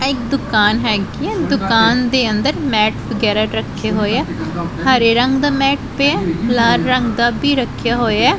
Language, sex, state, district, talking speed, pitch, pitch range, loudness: Punjabi, female, Punjab, Pathankot, 170 wpm, 235 Hz, 220-265 Hz, -15 LUFS